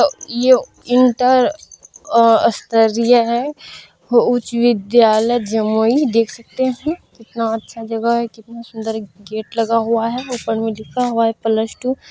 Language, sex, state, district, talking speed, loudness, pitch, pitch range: Hindi, female, Bihar, Jamui, 140 wpm, -16 LUFS, 230 Hz, 225-245 Hz